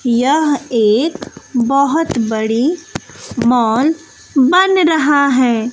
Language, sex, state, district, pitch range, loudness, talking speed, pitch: Hindi, female, Bihar, West Champaran, 240-310 Hz, -14 LUFS, 85 wpm, 275 Hz